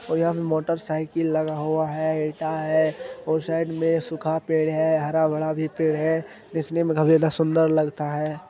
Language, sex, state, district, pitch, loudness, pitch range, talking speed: Hindi, male, Bihar, Araria, 160 Hz, -23 LUFS, 155-160 Hz, 185 wpm